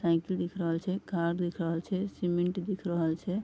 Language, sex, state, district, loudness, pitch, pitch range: Maithili, female, Bihar, Vaishali, -32 LUFS, 175 Hz, 170-185 Hz